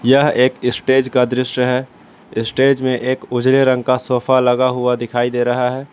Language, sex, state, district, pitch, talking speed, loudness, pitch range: Hindi, male, Jharkhand, Palamu, 125 Hz, 190 wpm, -16 LUFS, 125-130 Hz